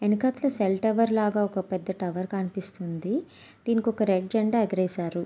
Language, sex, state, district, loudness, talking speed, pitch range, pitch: Telugu, female, Andhra Pradesh, Visakhapatnam, -27 LUFS, 135 wpm, 185-225 Hz, 200 Hz